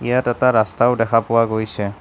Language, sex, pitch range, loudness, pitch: Assamese, male, 110-120 Hz, -17 LUFS, 115 Hz